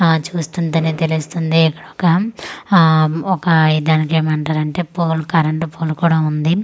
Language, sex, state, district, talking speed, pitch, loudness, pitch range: Telugu, female, Andhra Pradesh, Manyam, 145 wpm, 160 Hz, -16 LUFS, 155-170 Hz